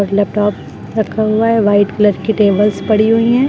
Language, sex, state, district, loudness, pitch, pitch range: Hindi, female, Uttar Pradesh, Lucknow, -13 LUFS, 210 Hz, 205-220 Hz